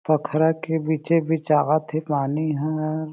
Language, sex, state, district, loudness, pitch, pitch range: Chhattisgarhi, male, Chhattisgarh, Jashpur, -22 LUFS, 155 Hz, 155-160 Hz